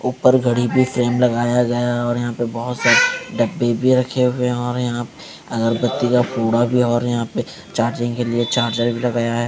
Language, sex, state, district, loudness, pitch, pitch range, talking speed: Hindi, male, Punjab, Fazilka, -18 LUFS, 120 Hz, 120-125 Hz, 220 wpm